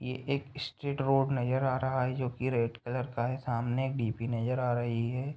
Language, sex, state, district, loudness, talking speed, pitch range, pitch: Hindi, male, Uttar Pradesh, Ghazipur, -32 LUFS, 235 wpm, 120-135 Hz, 130 Hz